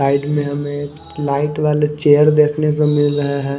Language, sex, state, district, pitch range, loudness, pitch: Hindi, male, Punjab, Kapurthala, 145-150 Hz, -16 LUFS, 145 Hz